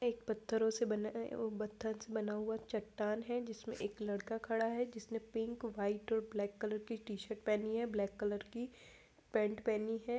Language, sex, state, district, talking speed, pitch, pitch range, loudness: Hindi, female, Bihar, Darbhanga, 190 wpm, 220 Hz, 210-230 Hz, -40 LUFS